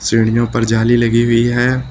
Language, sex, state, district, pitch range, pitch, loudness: Hindi, male, Uttar Pradesh, Lucknow, 115-120 Hz, 115 Hz, -14 LUFS